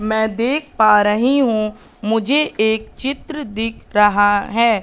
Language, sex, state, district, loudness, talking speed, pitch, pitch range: Hindi, female, Madhya Pradesh, Katni, -17 LUFS, 135 wpm, 220 Hz, 215-255 Hz